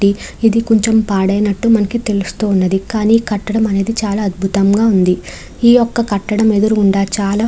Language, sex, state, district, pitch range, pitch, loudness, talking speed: Telugu, female, Andhra Pradesh, Krishna, 195-225 Hz, 210 Hz, -14 LUFS, 145 wpm